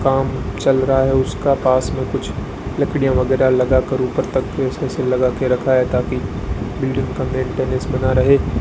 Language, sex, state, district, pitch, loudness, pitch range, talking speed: Hindi, female, Rajasthan, Bikaner, 130 Hz, -18 LUFS, 130-135 Hz, 160 wpm